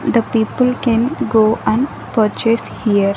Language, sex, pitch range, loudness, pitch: English, female, 220-250 Hz, -16 LUFS, 230 Hz